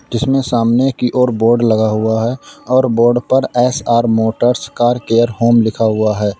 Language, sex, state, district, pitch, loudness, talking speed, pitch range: Hindi, male, Uttar Pradesh, Lalitpur, 120 Hz, -14 LUFS, 180 wpm, 110-125 Hz